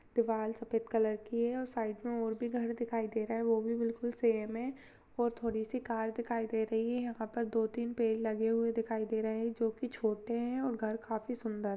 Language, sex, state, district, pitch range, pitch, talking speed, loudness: Hindi, female, Chhattisgarh, Jashpur, 220-235 Hz, 230 Hz, 235 wpm, -35 LUFS